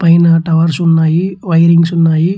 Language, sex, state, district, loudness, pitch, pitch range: Telugu, male, Andhra Pradesh, Chittoor, -11 LUFS, 165 Hz, 165-170 Hz